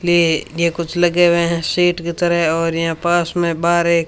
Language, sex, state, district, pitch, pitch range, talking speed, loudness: Hindi, female, Rajasthan, Bikaner, 170 Hz, 165-175 Hz, 190 wpm, -16 LUFS